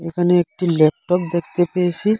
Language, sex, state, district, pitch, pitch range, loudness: Bengali, female, Assam, Hailakandi, 175 Hz, 170-180 Hz, -18 LUFS